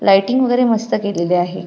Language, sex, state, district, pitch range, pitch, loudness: Marathi, female, Maharashtra, Pune, 180-245 Hz, 200 Hz, -16 LUFS